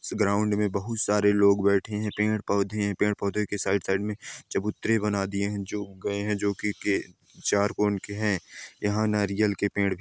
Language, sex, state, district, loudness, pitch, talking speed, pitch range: Hindi, male, Chhattisgarh, Balrampur, -27 LUFS, 105 Hz, 215 wpm, 100-105 Hz